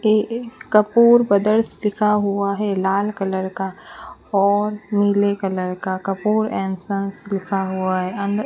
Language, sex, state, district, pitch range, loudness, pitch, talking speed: Hindi, female, Rajasthan, Bikaner, 195-210 Hz, -20 LUFS, 200 Hz, 155 wpm